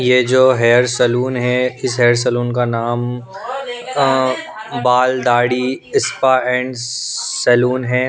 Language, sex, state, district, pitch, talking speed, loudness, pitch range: Hindi, male, Punjab, Pathankot, 125 Hz, 120 wpm, -16 LUFS, 120-130 Hz